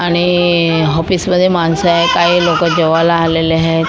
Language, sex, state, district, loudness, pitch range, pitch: Marathi, female, Maharashtra, Mumbai Suburban, -12 LUFS, 165-175 Hz, 170 Hz